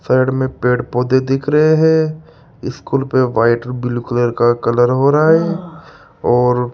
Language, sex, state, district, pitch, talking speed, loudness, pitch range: Hindi, male, Rajasthan, Jaipur, 130 Hz, 170 wpm, -15 LUFS, 125-150 Hz